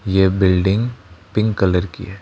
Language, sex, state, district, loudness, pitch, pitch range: Hindi, male, Rajasthan, Jaipur, -18 LUFS, 95 Hz, 95-105 Hz